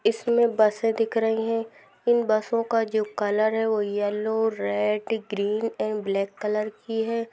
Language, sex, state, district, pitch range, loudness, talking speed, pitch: Hindi, female, Bihar, Saran, 210-225 Hz, -25 LUFS, 165 wpm, 220 Hz